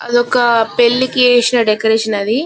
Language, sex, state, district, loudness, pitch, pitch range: Telugu, male, Telangana, Karimnagar, -13 LUFS, 240 Hz, 220-245 Hz